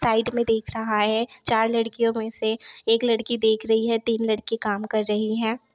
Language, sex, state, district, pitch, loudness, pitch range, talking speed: Hindi, female, Bihar, Begusarai, 225 Hz, -24 LUFS, 220-230 Hz, 210 wpm